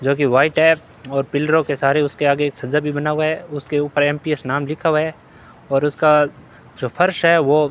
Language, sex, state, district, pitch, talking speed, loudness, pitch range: Hindi, male, Rajasthan, Bikaner, 145 Hz, 250 wpm, -18 LUFS, 140-155 Hz